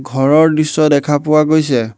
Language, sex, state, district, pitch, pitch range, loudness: Assamese, male, Assam, Hailakandi, 150 Hz, 135-155 Hz, -12 LUFS